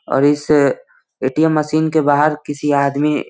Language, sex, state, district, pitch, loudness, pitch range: Hindi, male, Uttar Pradesh, Gorakhpur, 150 Hz, -16 LUFS, 145-155 Hz